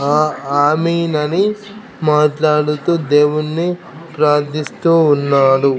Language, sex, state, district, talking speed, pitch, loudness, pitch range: Telugu, male, Andhra Pradesh, Krishna, 70 wpm, 150 Hz, -15 LUFS, 145-165 Hz